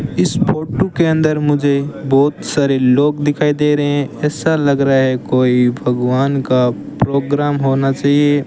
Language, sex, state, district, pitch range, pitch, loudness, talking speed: Hindi, male, Rajasthan, Bikaner, 135-145 Hz, 140 Hz, -15 LUFS, 155 wpm